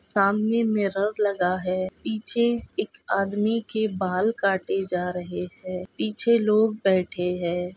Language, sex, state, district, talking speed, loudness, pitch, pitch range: Hindi, female, Maharashtra, Sindhudurg, 130 wpm, -25 LUFS, 195 Hz, 185-220 Hz